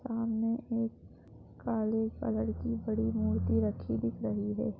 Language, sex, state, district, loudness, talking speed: Hindi, female, Uttar Pradesh, Budaun, -33 LUFS, 135 wpm